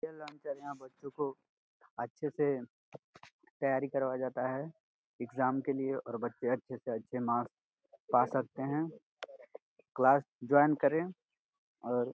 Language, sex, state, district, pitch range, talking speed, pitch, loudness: Hindi, male, Uttar Pradesh, Gorakhpur, 130-150 Hz, 125 wpm, 135 Hz, -34 LUFS